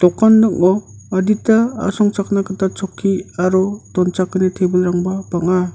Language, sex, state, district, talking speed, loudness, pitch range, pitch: Garo, male, Meghalaya, North Garo Hills, 105 wpm, -16 LUFS, 180-200 Hz, 190 Hz